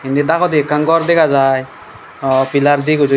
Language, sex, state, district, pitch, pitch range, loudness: Chakma, male, Tripura, Dhalai, 145 Hz, 135-155 Hz, -14 LUFS